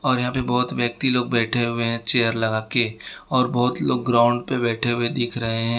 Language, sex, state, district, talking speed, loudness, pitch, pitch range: Hindi, male, Gujarat, Valsad, 230 wpm, -20 LUFS, 120 Hz, 115-125 Hz